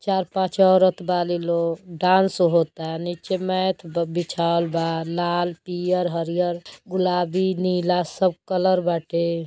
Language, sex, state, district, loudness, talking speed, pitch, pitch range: Bhojpuri, female, Uttar Pradesh, Gorakhpur, -22 LUFS, 125 wpm, 175 Hz, 170-185 Hz